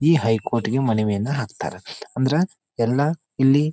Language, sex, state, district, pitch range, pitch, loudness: Kannada, male, Karnataka, Dharwad, 115-150 Hz, 135 Hz, -22 LUFS